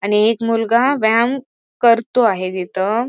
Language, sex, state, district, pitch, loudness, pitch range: Marathi, female, Maharashtra, Sindhudurg, 230 Hz, -16 LUFS, 210-235 Hz